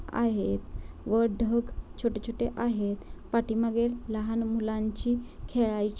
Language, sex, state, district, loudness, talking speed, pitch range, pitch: Marathi, female, Maharashtra, Dhule, -30 LUFS, 100 wpm, 215-235 Hz, 225 Hz